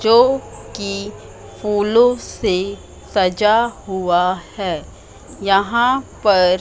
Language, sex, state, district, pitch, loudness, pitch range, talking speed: Hindi, female, Madhya Pradesh, Katni, 205 Hz, -18 LUFS, 190-235 Hz, 75 wpm